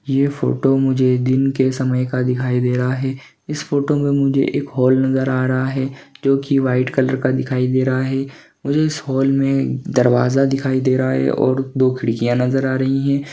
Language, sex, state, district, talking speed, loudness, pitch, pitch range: Hindi, male, Jharkhand, Sahebganj, 205 wpm, -18 LUFS, 130 Hz, 130-135 Hz